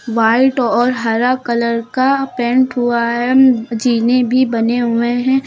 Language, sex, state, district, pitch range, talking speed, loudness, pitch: Hindi, female, Uttar Pradesh, Lucknow, 235-255 Hz, 145 wpm, -14 LUFS, 245 Hz